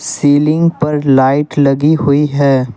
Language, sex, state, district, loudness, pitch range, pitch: Hindi, male, Assam, Kamrup Metropolitan, -12 LUFS, 140-150 Hz, 145 Hz